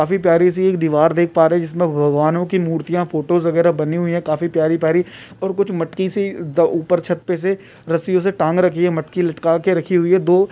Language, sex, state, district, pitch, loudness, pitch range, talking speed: Hindi, male, Rajasthan, Churu, 170 Hz, -17 LUFS, 165-180 Hz, 225 wpm